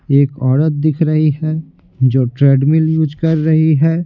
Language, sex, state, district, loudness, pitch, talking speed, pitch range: Hindi, male, Bihar, Patna, -14 LUFS, 155 Hz, 165 wpm, 140-160 Hz